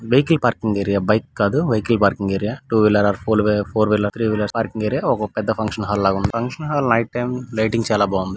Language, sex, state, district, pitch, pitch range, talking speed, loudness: Telugu, male, Andhra Pradesh, Guntur, 110 Hz, 105-115 Hz, 210 wpm, -19 LUFS